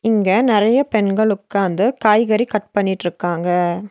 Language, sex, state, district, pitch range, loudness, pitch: Tamil, female, Tamil Nadu, Nilgiris, 190-220 Hz, -17 LUFS, 205 Hz